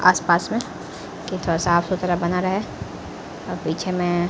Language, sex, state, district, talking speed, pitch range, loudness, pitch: Hindi, female, Bihar, Patna, 155 wpm, 175-185 Hz, -23 LUFS, 175 Hz